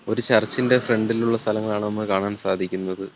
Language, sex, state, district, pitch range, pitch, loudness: Malayalam, male, Kerala, Kollam, 95-115 Hz, 110 Hz, -21 LUFS